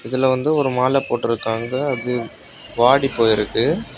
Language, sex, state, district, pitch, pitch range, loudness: Tamil, male, Tamil Nadu, Kanyakumari, 125 Hz, 115-135 Hz, -19 LUFS